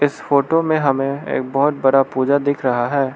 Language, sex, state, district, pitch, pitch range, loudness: Hindi, male, Arunachal Pradesh, Lower Dibang Valley, 140 Hz, 135-145 Hz, -17 LUFS